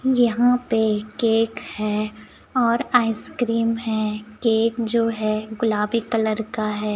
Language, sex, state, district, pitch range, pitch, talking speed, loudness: Hindi, male, Chhattisgarh, Raipur, 215-235 Hz, 225 Hz, 120 wpm, -22 LUFS